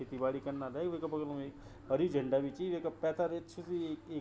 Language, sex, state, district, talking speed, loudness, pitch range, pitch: Garhwali, male, Uttarakhand, Tehri Garhwal, 270 wpm, -37 LUFS, 135-170 Hz, 150 Hz